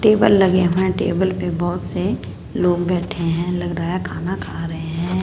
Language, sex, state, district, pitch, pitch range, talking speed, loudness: Hindi, female, Punjab, Fazilka, 175 Hz, 170-185 Hz, 205 wpm, -20 LUFS